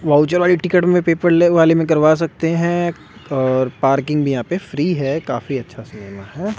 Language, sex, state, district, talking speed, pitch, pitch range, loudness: Hindi, male, Delhi, New Delhi, 180 wpm, 155 Hz, 135-175 Hz, -16 LUFS